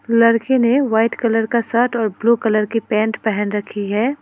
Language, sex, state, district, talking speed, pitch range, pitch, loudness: Hindi, female, West Bengal, Alipurduar, 200 wpm, 215-235 Hz, 225 Hz, -17 LUFS